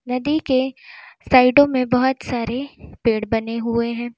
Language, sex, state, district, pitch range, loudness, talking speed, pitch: Hindi, female, Uttar Pradesh, Lalitpur, 235-270 Hz, -19 LUFS, 145 wpm, 255 Hz